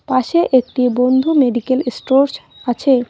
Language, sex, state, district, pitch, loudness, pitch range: Bengali, female, West Bengal, Cooch Behar, 260 Hz, -15 LUFS, 250-270 Hz